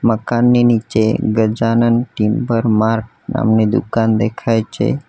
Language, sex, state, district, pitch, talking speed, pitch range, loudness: Gujarati, male, Gujarat, Valsad, 115 Hz, 105 wpm, 110-120 Hz, -15 LUFS